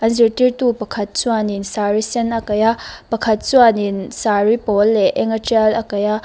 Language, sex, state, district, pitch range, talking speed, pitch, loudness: Mizo, female, Mizoram, Aizawl, 210-230 Hz, 190 wpm, 220 Hz, -16 LUFS